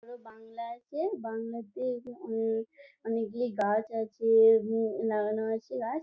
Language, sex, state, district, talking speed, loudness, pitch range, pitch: Bengali, female, West Bengal, Jhargram, 120 wpm, -30 LUFS, 225-240 Hz, 225 Hz